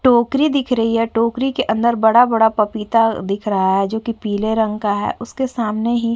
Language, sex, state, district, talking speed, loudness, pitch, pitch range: Hindi, female, Uttar Pradesh, Jyotiba Phule Nagar, 215 wpm, -17 LUFS, 225 Hz, 215-235 Hz